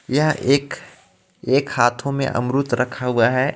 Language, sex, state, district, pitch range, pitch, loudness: Hindi, male, Jharkhand, Ranchi, 125-140 Hz, 130 Hz, -19 LUFS